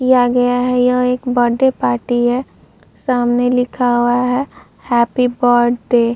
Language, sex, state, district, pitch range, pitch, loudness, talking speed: Hindi, female, Uttar Pradesh, Muzaffarnagar, 240-250 Hz, 245 Hz, -15 LUFS, 145 wpm